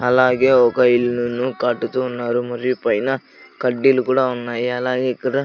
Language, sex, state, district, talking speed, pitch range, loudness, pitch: Telugu, male, Andhra Pradesh, Sri Satya Sai, 120 wpm, 120-130 Hz, -18 LUFS, 125 Hz